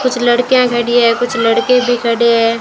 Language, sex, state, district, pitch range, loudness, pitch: Hindi, female, Rajasthan, Bikaner, 230-245 Hz, -12 LUFS, 240 Hz